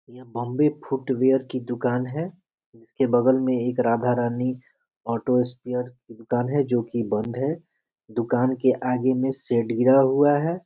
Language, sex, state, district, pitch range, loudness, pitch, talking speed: Hindi, male, Bihar, Muzaffarpur, 120-135 Hz, -23 LUFS, 125 Hz, 175 wpm